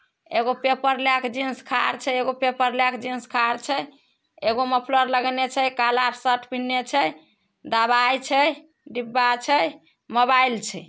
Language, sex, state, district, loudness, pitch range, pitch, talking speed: Maithili, female, Bihar, Samastipur, -22 LUFS, 245-265 Hz, 255 Hz, 155 wpm